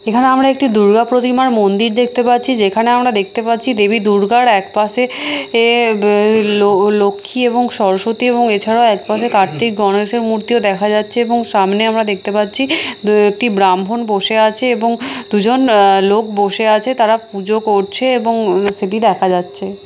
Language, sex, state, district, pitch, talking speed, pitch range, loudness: Bengali, female, Odisha, Khordha, 220 Hz, 165 wpm, 205-240 Hz, -13 LUFS